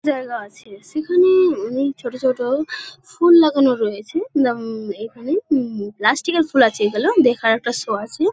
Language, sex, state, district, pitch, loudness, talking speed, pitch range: Bengali, male, West Bengal, Kolkata, 255 Hz, -18 LUFS, 150 wpm, 225-310 Hz